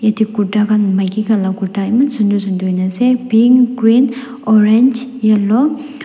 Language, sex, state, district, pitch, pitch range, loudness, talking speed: Nagamese, female, Nagaland, Dimapur, 220 Hz, 205-250 Hz, -13 LUFS, 180 wpm